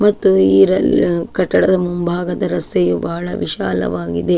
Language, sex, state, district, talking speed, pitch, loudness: Kannada, female, Karnataka, Shimoga, 95 wpm, 170 Hz, -16 LUFS